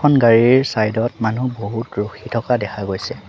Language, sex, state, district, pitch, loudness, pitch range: Assamese, male, Assam, Sonitpur, 115 Hz, -18 LUFS, 105-125 Hz